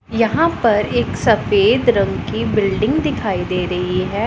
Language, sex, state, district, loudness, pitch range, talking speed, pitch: Hindi, female, Punjab, Pathankot, -17 LUFS, 180-305 Hz, 155 wpm, 210 Hz